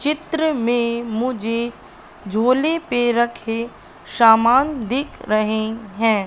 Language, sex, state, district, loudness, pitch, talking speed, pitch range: Hindi, female, Madhya Pradesh, Katni, -19 LUFS, 235 Hz, 95 wpm, 225-255 Hz